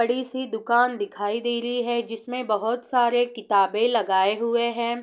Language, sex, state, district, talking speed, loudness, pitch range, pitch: Hindi, female, Bihar, East Champaran, 165 wpm, -24 LUFS, 220-245 Hz, 235 Hz